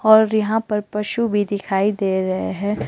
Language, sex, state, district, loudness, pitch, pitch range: Hindi, female, Himachal Pradesh, Shimla, -20 LUFS, 210 Hz, 200-220 Hz